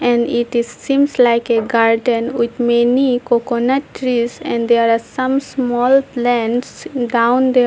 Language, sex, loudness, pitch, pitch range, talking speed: English, female, -16 LUFS, 240 Hz, 235-255 Hz, 150 wpm